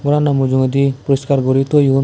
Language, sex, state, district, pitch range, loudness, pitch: Chakma, male, Tripura, West Tripura, 130-145 Hz, -15 LUFS, 140 Hz